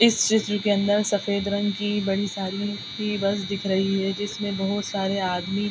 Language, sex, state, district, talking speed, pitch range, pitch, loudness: Hindi, female, Bihar, Araria, 200 wpm, 195-205 Hz, 200 Hz, -24 LUFS